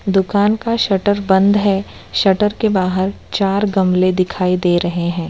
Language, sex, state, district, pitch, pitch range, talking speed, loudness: Hindi, female, Gujarat, Valsad, 195 Hz, 185-205 Hz, 160 wpm, -16 LUFS